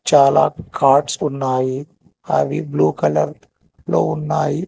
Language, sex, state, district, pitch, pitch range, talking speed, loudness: Telugu, male, Telangana, Hyderabad, 145 Hz, 130-160 Hz, 100 wpm, -18 LUFS